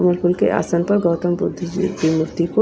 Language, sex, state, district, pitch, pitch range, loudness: Hindi, female, Punjab, Kapurthala, 175 Hz, 170-190 Hz, -19 LUFS